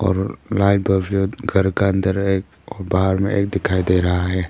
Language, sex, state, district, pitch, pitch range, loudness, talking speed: Hindi, male, Arunachal Pradesh, Papum Pare, 95 Hz, 95-100 Hz, -19 LUFS, 185 wpm